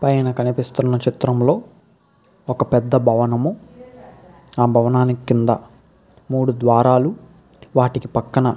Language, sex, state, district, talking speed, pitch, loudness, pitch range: Telugu, male, Andhra Pradesh, Krishna, 105 wpm, 125 Hz, -18 LUFS, 120-145 Hz